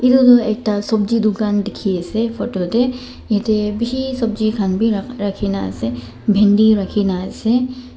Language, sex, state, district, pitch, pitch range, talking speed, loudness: Nagamese, male, Nagaland, Dimapur, 215 Hz, 200-230 Hz, 135 wpm, -17 LUFS